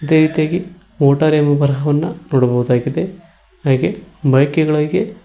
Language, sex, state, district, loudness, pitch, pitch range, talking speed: Kannada, male, Karnataka, Koppal, -16 LUFS, 155 Hz, 140-170 Hz, 90 wpm